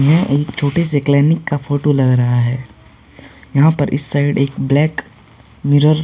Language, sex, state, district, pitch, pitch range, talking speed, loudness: Hindi, male, Uttar Pradesh, Hamirpur, 145 Hz, 130-145 Hz, 180 wpm, -15 LUFS